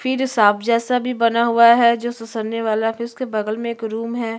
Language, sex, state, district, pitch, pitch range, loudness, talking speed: Hindi, female, Chhattisgarh, Sukma, 235 Hz, 225-240 Hz, -18 LUFS, 235 wpm